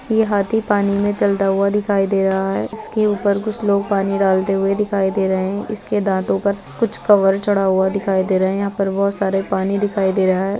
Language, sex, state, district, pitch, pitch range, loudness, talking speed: Hindi, female, Uttar Pradesh, Gorakhpur, 200 Hz, 195-205 Hz, -18 LUFS, 230 wpm